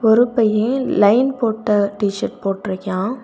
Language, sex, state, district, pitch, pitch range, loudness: Tamil, female, Tamil Nadu, Kanyakumari, 215 Hz, 200-240 Hz, -18 LUFS